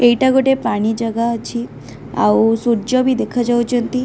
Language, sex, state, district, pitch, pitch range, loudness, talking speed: Odia, female, Odisha, Khordha, 235 Hz, 220-245 Hz, -16 LUFS, 135 wpm